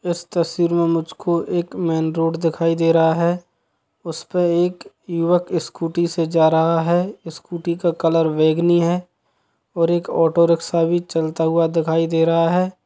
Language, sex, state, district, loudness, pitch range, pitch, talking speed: Hindi, male, Chhattisgarh, Sukma, -19 LUFS, 165-175 Hz, 170 Hz, 160 wpm